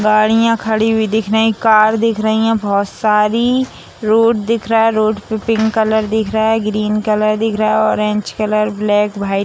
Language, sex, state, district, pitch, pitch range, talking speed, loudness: Hindi, female, Bihar, Samastipur, 220 Hz, 215-225 Hz, 205 wpm, -14 LUFS